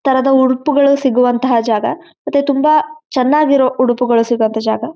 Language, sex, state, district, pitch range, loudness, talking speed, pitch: Kannada, female, Karnataka, Gulbarga, 240-290 Hz, -13 LUFS, 120 wpm, 260 Hz